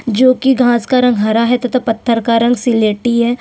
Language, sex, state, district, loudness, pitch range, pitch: Hindi, female, Chhattisgarh, Sukma, -13 LUFS, 230-250 Hz, 240 Hz